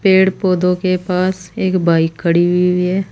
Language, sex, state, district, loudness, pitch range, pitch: Hindi, female, Uttar Pradesh, Saharanpur, -15 LUFS, 180-185 Hz, 180 Hz